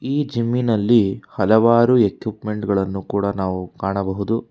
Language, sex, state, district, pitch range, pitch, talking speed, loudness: Kannada, male, Karnataka, Bangalore, 100-115 Hz, 105 Hz, 105 wpm, -19 LUFS